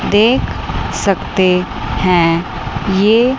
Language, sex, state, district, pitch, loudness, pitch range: Hindi, female, Chandigarh, Chandigarh, 185 Hz, -15 LUFS, 170-215 Hz